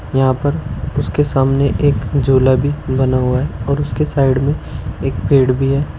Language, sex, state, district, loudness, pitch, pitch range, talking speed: Hindi, male, Uttar Pradesh, Shamli, -16 LUFS, 135 Hz, 130-140 Hz, 180 wpm